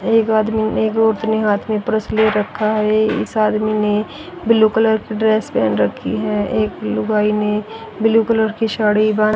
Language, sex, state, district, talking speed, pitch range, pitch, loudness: Hindi, female, Haryana, Rohtak, 185 wpm, 210-220 Hz, 215 Hz, -17 LUFS